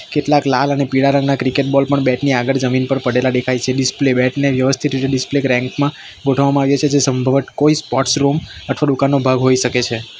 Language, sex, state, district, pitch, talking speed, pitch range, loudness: Gujarati, male, Gujarat, Valsad, 135 Hz, 225 wpm, 130-140 Hz, -16 LUFS